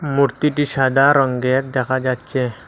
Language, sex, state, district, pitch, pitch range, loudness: Bengali, male, Assam, Hailakandi, 130 Hz, 130-140 Hz, -17 LUFS